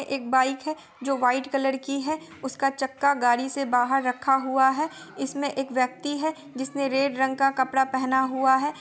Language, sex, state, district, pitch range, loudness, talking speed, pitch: Hindi, female, Bihar, Gopalganj, 260-275 Hz, -25 LUFS, 200 wpm, 270 Hz